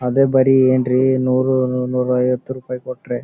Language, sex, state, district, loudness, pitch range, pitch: Kannada, male, Karnataka, Bellary, -17 LUFS, 125-130 Hz, 130 Hz